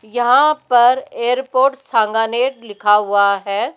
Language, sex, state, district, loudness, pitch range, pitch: Hindi, female, Rajasthan, Jaipur, -15 LUFS, 210-260 Hz, 240 Hz